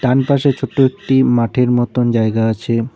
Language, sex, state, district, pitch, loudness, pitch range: Bengali, male, West Bengal, Cooch Behar, 125 Hz, -15 LUFS, 115-130 Hz